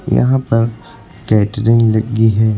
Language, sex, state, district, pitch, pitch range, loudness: Hindi, male, Uttar Pradesh, Lucknow, 110 Hz, 110-115 Hz, -14 LUFS